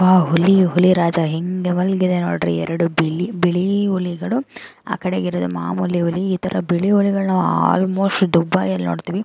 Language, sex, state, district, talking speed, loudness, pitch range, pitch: Kannada, female, Karnataka, Chamarajanagar, 115 wpm, -18 LUFS, 165-190 Hz, 180 Hz